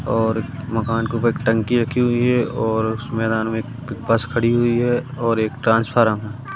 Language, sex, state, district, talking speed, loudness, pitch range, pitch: Hindi, male, Madhya Pradesh, Katni, 190 wpm, -20 LUFS, 110-120 Hz, 115 Hz